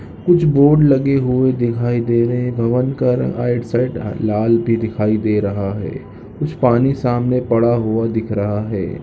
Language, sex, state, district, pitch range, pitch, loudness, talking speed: Hindi, male, Chhattisgarh, Balrampur, 110-125 Hz, 120 Hz, -17 LUFS, 180 wpm